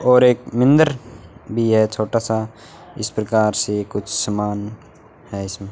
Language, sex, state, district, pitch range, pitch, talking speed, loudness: Hindi, male, Rajasthan, Bikaner, 105-120 Hz, 110 Hz, 145 wpm, -19 LUFS